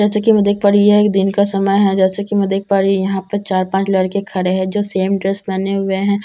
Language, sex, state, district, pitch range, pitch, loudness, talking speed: Hindi, female, Bihar, Katihar, 190-205 Hz, 195 Hz, -15 LUFS, 290 wpm